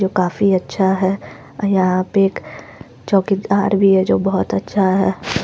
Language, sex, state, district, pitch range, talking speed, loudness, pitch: Hindi, female, Bihar, Lakhisarai, 185-195 Hz, 155 wpm, -17 LUFS, 190 Hz